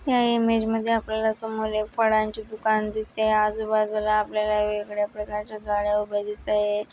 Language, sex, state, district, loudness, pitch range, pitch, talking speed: Marathi, female, Maharashtra, Dhule, -25 LUFS, 210-220 Hz, 215 Hz, 130 wpm